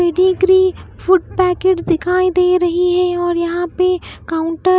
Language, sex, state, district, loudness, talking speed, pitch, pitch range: Hindi, female, Bihar, West Champaran, -15 LUFS, 150 wpm, 360 Hz, 350-370 Hz